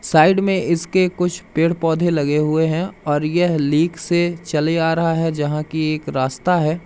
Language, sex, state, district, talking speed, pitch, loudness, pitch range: Hindi, male, Madhya Pradesh, Umaria, 190 wpm, 165 Hz, -18 LUFS, 155-175 Hz